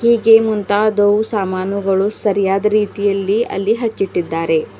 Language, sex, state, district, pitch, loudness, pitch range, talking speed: Kannada, female, Karnataka, Bidar, 205 Hz, -16 LUFS, 195-215 Hz, 90 wpm